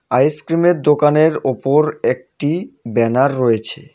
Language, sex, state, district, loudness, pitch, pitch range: Bengali, male, West Bengal, Cooch Behar, -16 LUFS, 150 Hz, 135-155 Hz